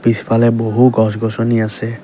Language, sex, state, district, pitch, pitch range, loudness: Assamese, male, Assam, Kamrup Metropolitan, 115 Hz, 110-115 Hz, -14 LUFS